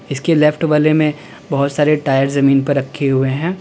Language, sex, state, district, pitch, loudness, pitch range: Hindi, male, Uttar Pradesh, Lalitpur, 145 Hz, -15 LUFS, 140-155 Hz